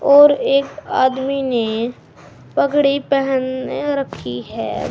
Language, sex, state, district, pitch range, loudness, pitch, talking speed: Hindi, female, Haryana, Charkhi Dadri, 235-280 Hz, -18 LUFS, 270 Hz, 100 wpm